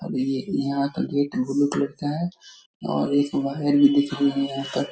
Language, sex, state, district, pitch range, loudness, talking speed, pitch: Hindi, male, Bihar, Darbhanga, 140-145 Hz, -23 LUFS, 230 wpm, 140 Hz